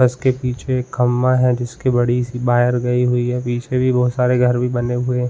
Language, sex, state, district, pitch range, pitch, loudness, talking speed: Hindi, male, Uttarakhand, Uttarkashi, 120-125 Hz, 125 Hz, -18 LUFS, 240 wpm